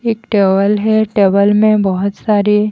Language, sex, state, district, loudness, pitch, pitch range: Hindi, female, Haryana, Jhajjar, -13 LUFS, 210 Hz, 200-215 Hz